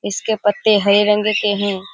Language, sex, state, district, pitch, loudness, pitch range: Hindi, female, Bihar, Kishanganj, 205 Hz, -16 LUFS, 200-210 Hz